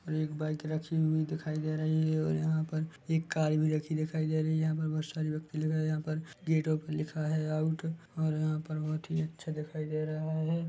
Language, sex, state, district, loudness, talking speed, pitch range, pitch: Hindi, male, Chhattisgarh, Bilaspur, -33 LUFS, 265 wpm, 155-160 Hz, 155 Hz